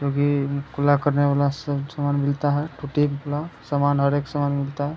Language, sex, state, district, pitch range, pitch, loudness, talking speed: Hindi, male, Bihar, Jamui, 140-145 Hz, 145 Hz, -23 LUFS, 205 wpm